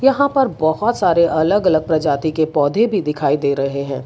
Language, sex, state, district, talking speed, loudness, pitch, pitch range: Hindi, female, Gujarat, Valsad, 205 wpm, -17 LUFS, 160 Hz, 145-205 Hz